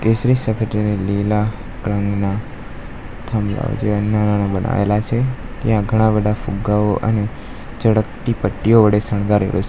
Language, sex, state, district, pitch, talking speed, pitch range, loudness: Gujarati, male, Gujarat, Valsad, 105 Hz, 95 wpm, 105-115 Hz, -18 LUFS